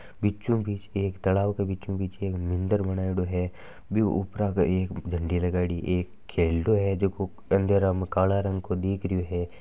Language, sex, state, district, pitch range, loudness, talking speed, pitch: Marwari, male, Rajasthan, Nagaur, 90-100 Hz, -27 LUFS, 160 wpm, 95 Hz